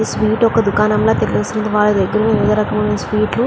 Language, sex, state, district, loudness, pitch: Telugu, female, Andhra Pradesh, Chittoor, -15 LUFS, 210 Hz